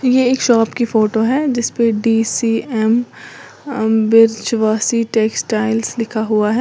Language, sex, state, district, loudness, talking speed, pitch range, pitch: Hindi, female, Uttar Pradesh, Lalitpur, -15 LUFS, 125 wpm, 220-240 Hz, 225 Hz